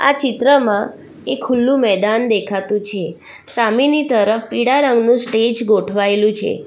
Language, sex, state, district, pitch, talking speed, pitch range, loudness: Gujarati, female, Gujarat, Valsad, 230 Hz, 125 wpm, 210-260 Hz, -15 LUFS